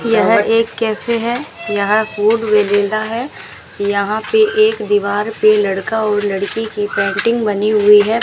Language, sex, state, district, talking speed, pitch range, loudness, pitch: Hindi, female, Rajasthan, Bikaner, 155 wpm, 205-225 Hz, -15 LUFS, 215 Hz